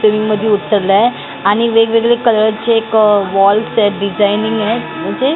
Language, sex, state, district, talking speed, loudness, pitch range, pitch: Marathi, female, Maharashtra, Mumbai Suburban, 135 wpm, -13 LUFS, 205-225 Hz, 215 Hz